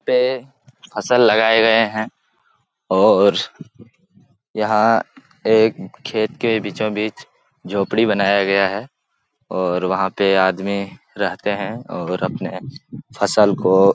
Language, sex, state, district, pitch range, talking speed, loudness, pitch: Hindi, male, Bihar, Jahanabad, 100-115 Hz, 110 wpm, -18 LUFS, 110 Hz